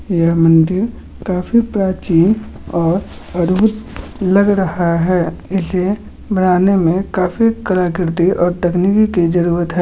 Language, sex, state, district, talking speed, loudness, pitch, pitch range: Hindi, male, Bihar, Gaya, 130 wpm, -15 LUFS, 180 Hz, 175-195 Hz